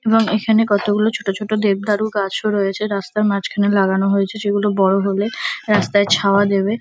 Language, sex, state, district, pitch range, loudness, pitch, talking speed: Bengali, female, West Bengal, North 24 Parganas, 195-215 Hz, -17 LUFS, 205 Hz, 165 wpm